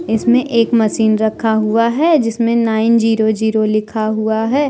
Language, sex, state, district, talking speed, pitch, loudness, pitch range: Hindi, male, Jharkhand, Deoghar, 165 wpm, 225 Hz, -14 LUFS, 220-230 Hz